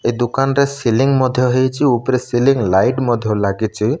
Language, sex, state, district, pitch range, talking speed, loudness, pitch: Odia, male, Odisha, Malkangiri, 115-130 Hz, 165 wpm, -16 LUFS, 125 Hz